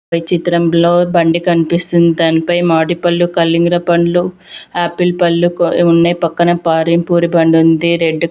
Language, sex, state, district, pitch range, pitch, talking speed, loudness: Telugu, female, Andhra Pradesh, Visakhapatnam, 165-175 Hz, 170 Hz, 150 wpm, -12 LUFS